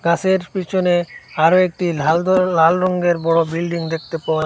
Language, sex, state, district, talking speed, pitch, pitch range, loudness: Bengali, male, Assam, Hailakandi, 160 wpm, 170 Hz, 165-185 Hz, -17 LUFS